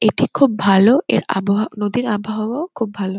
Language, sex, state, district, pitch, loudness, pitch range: Bengali, female, West Bengal, Kolkata, 215 Hz, -17 LUFS, 200-245 Hz